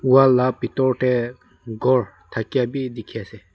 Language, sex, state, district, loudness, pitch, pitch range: Nagamese, male, Nagaland, Dimapur, -21 LUFS, 125 Hz, 115-130 Hz